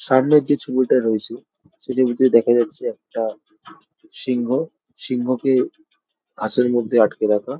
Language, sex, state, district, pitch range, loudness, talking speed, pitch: Bengali, male, West Bengal, Jalpaiguri, 120-150 Hz, -19 LUFS, 120 wpm, 130 Hz